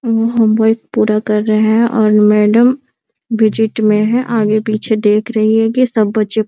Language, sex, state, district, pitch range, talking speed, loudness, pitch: Hindi, female, Bihar, Araria, 215-225 Hz, 175 wpm, -13 LUFS, 220 Hz